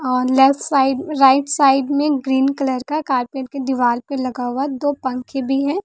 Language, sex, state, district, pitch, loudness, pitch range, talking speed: Hindi, female, Bihar, West Champaran, 270 Hz, -18 LUFS, 260-280 Hz, 195 wpm